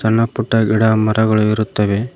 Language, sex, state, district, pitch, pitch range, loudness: Kannada, male, Karnataka, Koppal, 110 Hz, 110-115 Hz, -15 LUFS